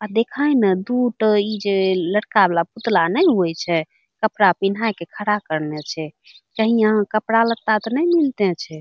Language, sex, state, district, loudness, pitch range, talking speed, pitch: Angika, female, Bihar, Bhagalpur, -19 LUFS, 180-225 Hz, 195 wpm, 210 Hz